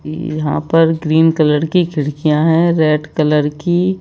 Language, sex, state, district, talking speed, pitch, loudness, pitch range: Hindi, male, Madhya Pradesh, Bhopal, 150 wpm, 155 Hz, -14 LUFS, 150-165 Hz